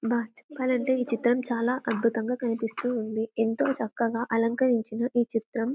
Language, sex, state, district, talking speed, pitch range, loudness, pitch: Telugu, female, Telangana, Karimnagar, 125 wpm, 230-250 Hz, -27 LUFS, 235 Hz